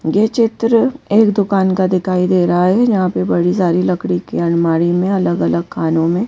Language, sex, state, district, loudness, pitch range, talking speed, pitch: Hindi, female, Madhya Pradesh, Bhopal, -15 LUFS, 170-205 Hz, 190 wpm, 185 Hz